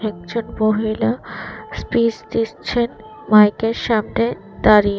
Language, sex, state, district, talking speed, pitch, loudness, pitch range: Bengali, female, Tripura, West Tripura, 85 wpm, 225 Hz, -18 LUFS, 215-230 Hz